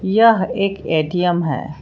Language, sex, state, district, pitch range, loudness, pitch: Hindi, female, Jharkhand, Palamu, 160-200 Hz, -17 LUFS, 180 Hz